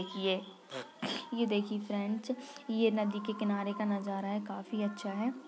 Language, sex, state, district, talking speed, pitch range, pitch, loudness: Hindi, female, Bihar, Purnia, 140 wpm, 200-225 Hz, 210 Hz, -35 LUFS